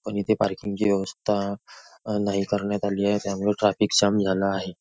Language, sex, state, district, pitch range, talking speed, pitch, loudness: Marathi, male, Maharashtra, Nagpur, 100-105 Hz, 175 wpm, 100 Hz, -24 LUFS